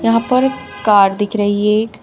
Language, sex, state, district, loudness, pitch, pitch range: Hindi, female, Uttar Pradesh, Shamli, -15 LUFS, 215 Hz, 205-230 Hz